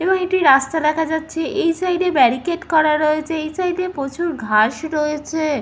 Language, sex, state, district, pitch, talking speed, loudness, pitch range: Bengali, female, West Bengal, Paschim Medinipur, 320 Hz, 190 wpm, -18 LUFS, 300-345 Hz